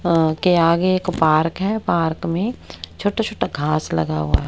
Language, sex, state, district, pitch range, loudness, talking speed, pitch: Hindi, female, Haryana, Rohtak, 155-185 Hz, -19 LUFS, 185 wpm, 170 Hz